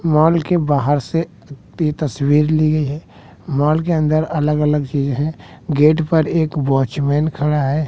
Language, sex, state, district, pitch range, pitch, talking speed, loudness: Hindi, male, Bihar, West Champaran, 145-155 Hz, 150 Hz, 165 wpm, -17 LUFS